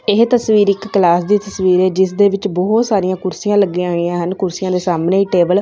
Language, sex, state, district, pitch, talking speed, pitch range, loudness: Punjabi, female, Punjab, Fazilka, 190 Hz, 225 wpm, 180-205 Hz, -15 LUFS